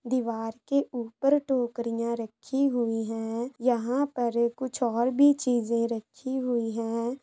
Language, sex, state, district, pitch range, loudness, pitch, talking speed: Hindi, female, Bihar, Araria, 230-260 Hz, -28 LUFS, 240 Hz, 130 wpm